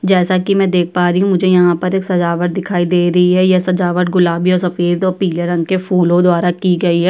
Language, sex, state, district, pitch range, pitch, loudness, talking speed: Hindi, female, Uttar Pradesh, Budaun, 175-185 Hz, 180 Hz, -14 LUFS, 255 wpm